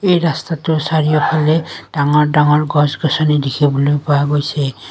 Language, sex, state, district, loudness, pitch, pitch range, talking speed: Assamese, female, Assam, Kamrup Metropolitan, -15 LUFS, 150 Hz, 145-155 Hz, 120 wpm